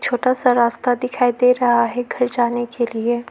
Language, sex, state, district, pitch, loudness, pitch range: Hindi, female, Arunachal Pradesh, Lower Dibang Valley, 245 Hz, -18 LUFS, 240-250 Hz